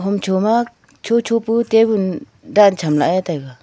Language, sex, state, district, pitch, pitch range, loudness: Wancho, female, Arunachal Pradesh, Longding, 205 Hz, 185-230 Hz, -16 LUFS